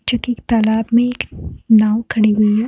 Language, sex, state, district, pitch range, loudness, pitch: Hindi, female, Bihar, Muzaffarpur, 215-235 Hz, -16 LUFS, 225 Hz